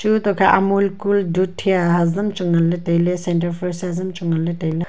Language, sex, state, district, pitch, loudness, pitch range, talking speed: Wancho, female, Arunachal Pradesh, Longding, 180 Hz, -19 LUFS, 170-195 Hz, 220 wpm